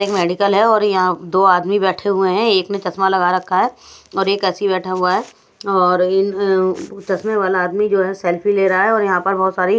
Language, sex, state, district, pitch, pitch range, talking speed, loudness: Hindi, female, Odisha, Nuapada, 190 Hz, 185-200 Hz, 245 wpm, -16 LUFS